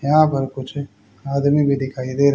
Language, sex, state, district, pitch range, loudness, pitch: Hindi, male, Haryana, Charkhi Dadri, 130-140 Hz, -20 LUFS, 140 Hz